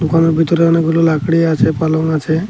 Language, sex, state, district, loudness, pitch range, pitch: Bengali, male, Tripura, Unakoti, -14 LUFS, 160-165 Hz, 165 Hz